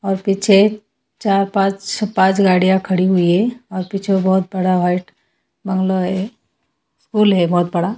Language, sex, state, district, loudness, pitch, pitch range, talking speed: Hindi, female, Haryana, Charkhi Dadri, -16 LUFS, 190 Hz, 185-200 Hz, 160 wpm